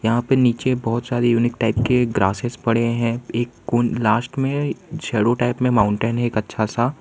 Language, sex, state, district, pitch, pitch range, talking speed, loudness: Hindi, male, Gujarat, Valsad, 120 Hz, 115-125 Hz, 215 wpm, -20 LUFS